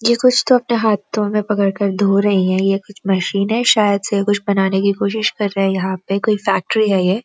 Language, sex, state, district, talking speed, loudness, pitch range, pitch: Hindi, female, Uttarakhand, Uttarkashi, 255 wpm, -16 LUFS, 195-215 Hz, 200 Hz